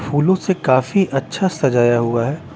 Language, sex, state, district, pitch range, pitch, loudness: Hindi, male, Bihar, Patna, 130-180 Hz, 145 Hz, -17 LUFS